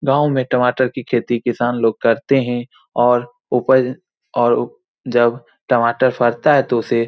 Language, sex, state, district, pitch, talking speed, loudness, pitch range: Hindi, male, Bihar, Saran, 125 Hz, 160 wpm, -17 LUFS, 120-130 Hz